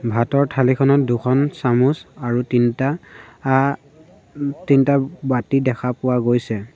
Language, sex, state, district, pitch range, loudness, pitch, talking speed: Assamese, male, Assam, Sonitpur, 120-140 Hz, -19 LUFS, 130 Hz, 105 wpm